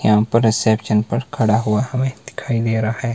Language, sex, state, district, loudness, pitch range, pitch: Hindi, male, Himachal Pradesh, Shimla, -18 LUFS, 110-120 Hz, 115 Hz